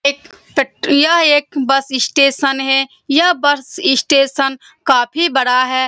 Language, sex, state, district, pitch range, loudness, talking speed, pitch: Hindi, female, Bihar, Saran, 270-295 Hz, -14 LUFS, 120 wpm, 275 Hz